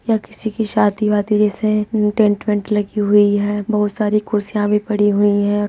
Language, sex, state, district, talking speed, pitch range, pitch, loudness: Hindi, female, Uttar Pradesh, Budaun, 190 wpm, 205-215 Hz, 210 Hz, -17 LUFS